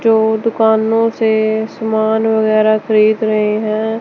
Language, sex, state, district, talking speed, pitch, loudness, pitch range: Hindi, male, Chandigarh, Chandigarh, 120 wpm, 220 Hz, -14 LUFS, 215-220 Hz